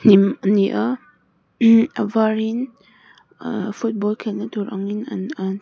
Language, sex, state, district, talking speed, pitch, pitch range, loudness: Mizo, female, Mizoram, Aizawl, 140 wpm, 215 Hz, 205-230 Hz, -20 LUFS